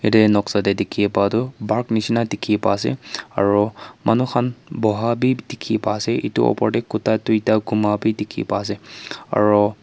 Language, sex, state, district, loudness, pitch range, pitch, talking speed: Nagamese, male, Nagaland, Kohima, -20 LUFS, 105-115 Hz, 110 Hz, 185 wpm